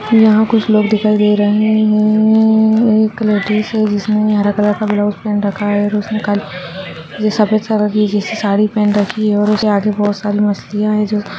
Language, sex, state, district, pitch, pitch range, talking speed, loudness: Hindi, female, Rajasthan, Churu, 210 Hz, 205-215 Hz, 180 wpm, -14 LUFS